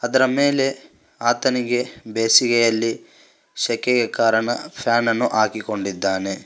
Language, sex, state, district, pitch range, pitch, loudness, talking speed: Kannada, male, Karnataka, Koppal, 110-125 Hz, 115 Hz, -20 LUFS, 85 wpm